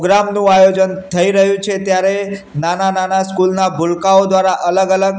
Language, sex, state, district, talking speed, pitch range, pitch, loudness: Gujarati, male, Gujarat, Gandhinagar, 150 wpm, 185-195 Hz, 190 Hz, -13 LUFS